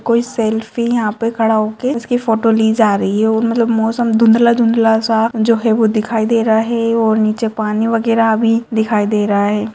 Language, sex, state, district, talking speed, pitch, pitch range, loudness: Hindi, female, Bihar, Purnia, 205 wpm, 225 Hz, 220-230 Hz, -14 LUFS